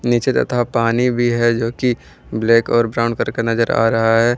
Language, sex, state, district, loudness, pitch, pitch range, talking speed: Hindi, male, Jharkhand, Ranchi, -17 LUFS, 115 Hz, 115-120 Hz, 205 wpm